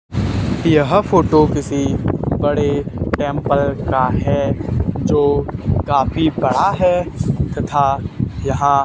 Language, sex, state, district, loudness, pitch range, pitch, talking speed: Hindi, male, Haryana, Charkhi Dadri, -17 LUFS, 135-150 Hz, 140 Hz, 90 wpm